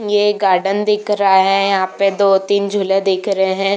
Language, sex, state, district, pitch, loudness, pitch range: Hindi, female, Uttar Pradesh, Jalaun, 195 Hz, -15 LUFS, 195-205 Hz